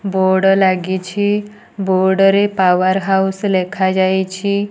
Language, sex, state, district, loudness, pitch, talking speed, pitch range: Odia, female, Odisha, Nuapada, -15 LUFS, 190 Hz, 90 wpm, 190-200 Hz